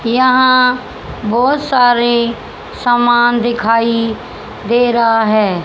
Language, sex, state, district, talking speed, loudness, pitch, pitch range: Hindi, female, Haryana, Charkhi Dadri, 85 wpm, -12 LUFS, 240 Hz, 230-245 Hz